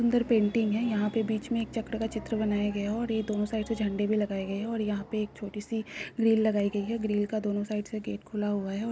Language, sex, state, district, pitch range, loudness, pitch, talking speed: Hindi, female, Bihar, Kishanganj, 205-225 Hz, -30 LUFS, 215 Hz, 280 wpm